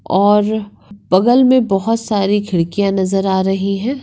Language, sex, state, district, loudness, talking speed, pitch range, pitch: Hindi, female, Maharashtra, Sindhudurg, -15 LUFS, 150 wpm, 195-220 Hz, 200 Hz